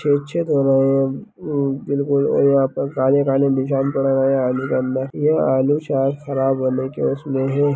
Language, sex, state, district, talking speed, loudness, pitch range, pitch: Hindi, male, Bihar, Lakhisarai, 195 wpm, -19 LUFS, 135-140 Hz, 135 Hz